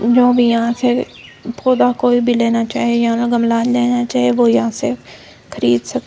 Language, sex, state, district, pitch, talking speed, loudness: Hindi, female, Delhi, New Delhi, 235 Hz, 190 wpm, -15 LUFS